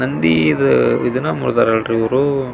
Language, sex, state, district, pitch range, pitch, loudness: Kannada, male, Karnataka, Belgaum, 80-130 Hz, 115 Hz, -15 LUFS